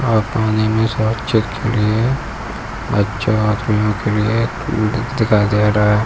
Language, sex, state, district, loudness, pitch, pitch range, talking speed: Hindi, male, Uttarakhand, Uttarkashi, -17 LUFS, 110 Hz, 105-115 Hz, 150 wpm